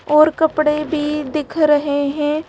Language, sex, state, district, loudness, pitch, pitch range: Hindi, female, Madhya Pradesh, Bhopal, -17 LUFS, 300 Hz, 295-310 Hz